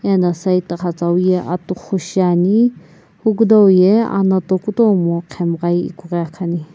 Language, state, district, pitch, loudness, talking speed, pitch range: Sumi, Nagaland, Kohima, 185 Hz, -16 LUFS, 105 wpm, 175-195 Hz